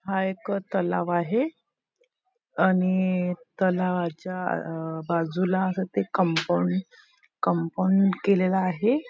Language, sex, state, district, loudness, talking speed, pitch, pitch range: Marathi, female, Maharashtra, Nagpur, -25 LUFS, 90 wpm, 185 Hz, 175-195 Hz